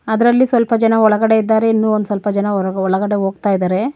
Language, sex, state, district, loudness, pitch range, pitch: Kannada, female, Karnataka, Bangalore, -15 LUFS, 200-225 Hz, 215 Hz